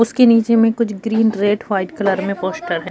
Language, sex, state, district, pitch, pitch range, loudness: Hindi, female, Uttar Pradesh, Jyotiba Phule Nagar, 205 Hz, 195-230 Hz, -16 LUFS